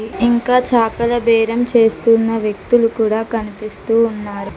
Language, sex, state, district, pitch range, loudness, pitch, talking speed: Telugu, female, Telangana, Mahabubabad, 220-235 Hz, -15 LUFS, 225 Hz, 105 wpm